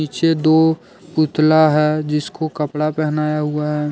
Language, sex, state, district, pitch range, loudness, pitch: Hindi, male, Jharkhand, Deoghar, 150-155 Hz, -17 LUFS, 155 Hz